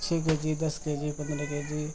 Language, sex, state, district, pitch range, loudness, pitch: Hindi, male, Bihar, Madhepura, 150-160 Hz, -31 LUFS, 150 Hz